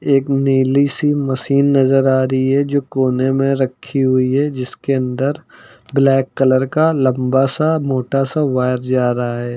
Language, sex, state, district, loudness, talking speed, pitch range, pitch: Hindi, male, Uttar Pradesh, Lucknow, -16 LUFS, 170 wpm, 130-140 Hz, 135 Hz